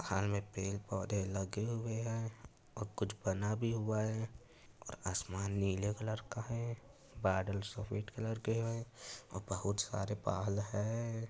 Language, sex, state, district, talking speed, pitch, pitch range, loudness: Hindi, male, Uttar Pradesh, Etah, 155 wpm, 105 Hz, 100-115 Hz, -39 LUFS